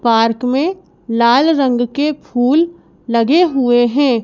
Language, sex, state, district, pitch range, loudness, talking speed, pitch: Hindi, male, Madhya Pradesh, Bhopal, 235-295 Hz, -14 LUFS, 125 wpm, 250 Hz